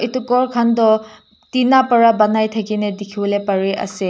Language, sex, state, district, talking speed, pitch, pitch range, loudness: Nagamese, female, Nagaland, Kohima, 175 wpm, 220 Hz, 205-235 Hz, -16 LUFS